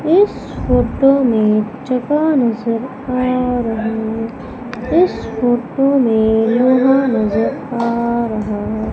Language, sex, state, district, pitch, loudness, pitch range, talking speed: Hindi, female, Madhya Pradesh, Umaria, 245 Hz, -16 LUFS, 225-260 Hz, 100 wpm